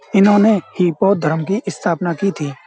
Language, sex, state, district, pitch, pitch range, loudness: Hindi, male, Uttar Pradesh, Jyotiba Phule Nagar, 190 Hz, 165-200 Hz, -16 LUFS